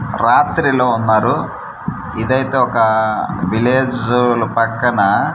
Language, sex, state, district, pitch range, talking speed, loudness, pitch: Telugu, male, Andhra Pradesh, Manyam, 110-125 Hz, 65 wpm, -15 LUFS, 120 Hz